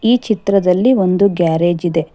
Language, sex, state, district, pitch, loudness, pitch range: Kannada, female, Karnataka, Bangalore, 185 Hz, -14 LUFS, 175-210 Hz